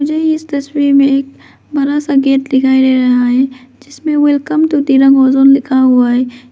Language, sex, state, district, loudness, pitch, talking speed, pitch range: Hindi, female, Arunachal Pradesh, Lower Dibang Valley, -11 LUFS, 275 Hz, 185 wpm, 265-290 Hz